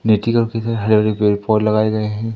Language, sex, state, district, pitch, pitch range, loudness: Hindi, male, Madhya Pradesh, Umaria, 110 Hz, 105-115 Hz, -17 LUFS